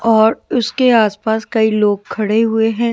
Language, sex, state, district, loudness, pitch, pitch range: Hindi, female, Himachal Pradesh, Shimla, -15 LUFS, 225 Hz, 220-230 Hz